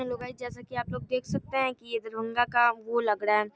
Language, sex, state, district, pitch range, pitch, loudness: Maithili, female, Bihar, Darbhanga, 225-250 Hz, 240 Hz, -29 LUFS